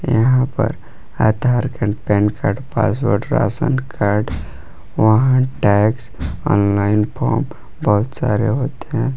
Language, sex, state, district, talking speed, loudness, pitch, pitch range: Hindi, male, Jharkhand, Palamu, 105 wpm, -17 LUFS, 110 Hz, 105-130 Hz